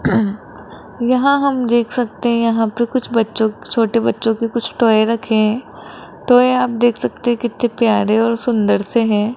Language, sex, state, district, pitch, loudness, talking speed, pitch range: Hindi, female, Rajasthan, Jaipur, 230 Hz, -16 LUFS, 165 wpm, 220-240 Hz